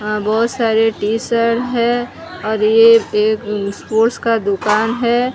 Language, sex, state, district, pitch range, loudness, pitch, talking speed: Hindi, female, Odisha, Sambalpur, 215-235 Hz, -15 LUFS, 225 Hz, 155 wpm